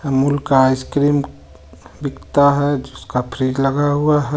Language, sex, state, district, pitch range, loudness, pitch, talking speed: Hindi, male, Jharkhand, Ranchi, 130-145 Hz, -17 LUFS, 135 Hz, 135 wpm